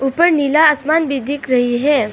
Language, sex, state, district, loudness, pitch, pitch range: Hindi, female, Arunachal Pradesh, Longding, -15 LUFS, 285 Hz, 265-310 Hz